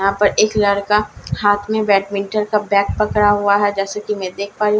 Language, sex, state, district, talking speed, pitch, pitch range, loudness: Hindi, female, Bihar, Katihar, 250 wpm, 205 Hz, 200-210 Hz, -17 LUFS